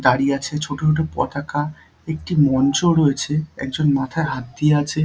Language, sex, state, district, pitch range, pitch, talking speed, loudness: Bengali, male, West Bengal, Dakshin Dinajpur, 140-155 Hz, 150 Hz, 165 wpm, -20 LUFS